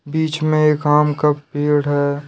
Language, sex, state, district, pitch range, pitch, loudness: Hindi, male, Jharkhand, Deoghar, 145-150 Hz, 150 Hz, -17 LUFS